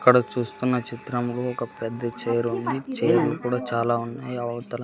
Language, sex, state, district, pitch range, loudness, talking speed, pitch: Telugu, male, Andhra Pradesh, Sri Satya Sai, 120-125 Hz, -26 LUFS, 150 wpm, 120 Hz